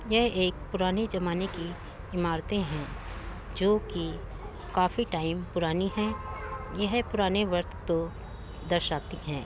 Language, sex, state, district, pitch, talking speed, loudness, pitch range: Hindi, female, Uttar Pradesh, Muzaffarnagar, 180 Hz, 115 wpm, -30 LUFS, 160-200 Hz